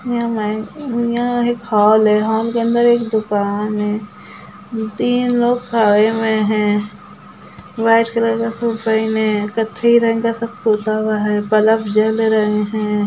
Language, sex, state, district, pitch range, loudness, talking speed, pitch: Hindi, male, Bihar, Gopalganj, 210-230 Hz, -16 LUFS, 135 wpm, 220 Hz